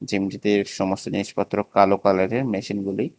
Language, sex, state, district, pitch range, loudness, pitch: Bengali, male, Tripura, West Tripura, 100-105 Hz, -22 LUFS, 100 Hz